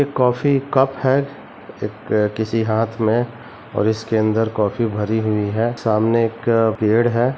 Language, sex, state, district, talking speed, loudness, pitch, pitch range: Hindi, male, Chhattisgarh, Rajnandgaon, 155 wpm, -19 LUFS, 115 Hz, 110-120 Hz